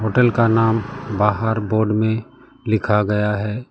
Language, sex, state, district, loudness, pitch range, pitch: Hindi, male, West Bengal, Alipurduar, -19 LUFS, 105-115 Hz, 110 Hz